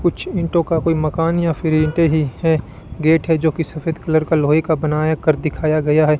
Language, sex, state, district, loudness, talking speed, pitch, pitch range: Hindi, male, Rajasthan, Bikaner, -17 LUFS, 225 wpm, 160 Hz, 155-165 Hz